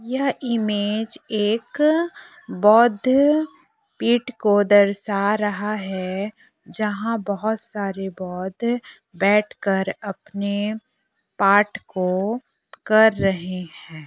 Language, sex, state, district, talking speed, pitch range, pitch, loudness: Hindi, female, Chhattisgarh, Korba, 85 wpm, 200-235 Hz, 210 Hz, -21 LUFS